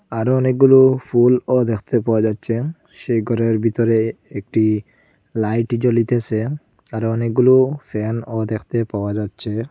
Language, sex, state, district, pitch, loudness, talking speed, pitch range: Bengali, male, Assam, Hailakandi, 115 Hz, -18 LUFS, 110 wpm, 110-125 Hz